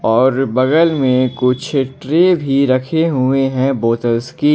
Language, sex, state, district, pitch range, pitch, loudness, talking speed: Hindi, male, Jharkhand, Ranchi, 130-150 Hz, 135 Hz, -15 LUFS, 145 wpm